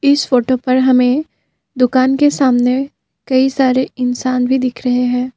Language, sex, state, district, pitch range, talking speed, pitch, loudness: Hindi, female, Assam, Kamrup Metropolitan, 250-265 Hz, 155 wpm, 255 Hz, -14 LUFS